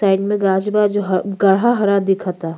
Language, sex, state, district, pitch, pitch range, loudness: Bhojpuri, female, Uttar Pradesh, Gorakhpur, 195 Hz, 190-205 Hz, -16 LUFS